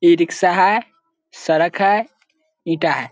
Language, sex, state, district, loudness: Hindi, male, Bihar, Sitamarhi, -17 LUFS